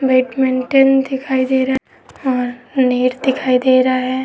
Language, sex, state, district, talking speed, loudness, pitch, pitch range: Hindi, female, Uttar Pradesh, Etah, 155 wpm, -16 LUFS, 260 Hz, 255-265 Hz